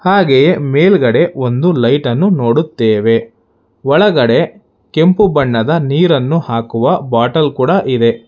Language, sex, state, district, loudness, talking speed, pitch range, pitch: Kannada, male, Karnataka, Bangalore, -12 LUFS, 100 wpm, 120-175 Hz, 140 Hz